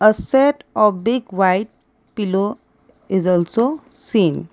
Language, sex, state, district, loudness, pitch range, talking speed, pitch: English, female, Assam, Kamrup Metropolitan, -18 LUFS, 190-245 Hz, 120 wpm, 210 Hz